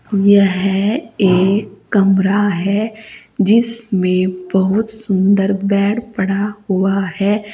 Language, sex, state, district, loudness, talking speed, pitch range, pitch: Hindi, female, Uttar Pradesh, Saharanpur, -15 LUFS, 85 wpm, 195-210 Hz, 200 Hz